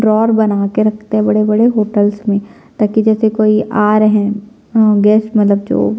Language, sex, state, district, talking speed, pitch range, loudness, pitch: Hindi, female, Chhattisgarh, Sukma, 200 wpm, 205-220 Hz, -13 LUFS, 215 Hz